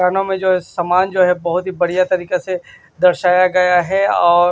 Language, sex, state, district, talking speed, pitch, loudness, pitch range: Hindi, male, Maharashtra, Washim, 185 wpm, 180 Hz, -15 LUFS, 175-185 Hz